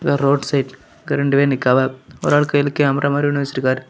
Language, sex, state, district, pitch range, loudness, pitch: Tamil, male, Tamil Nadu, Kanyakumari, 130-140 Hz, -18 LUFS, 140 Hz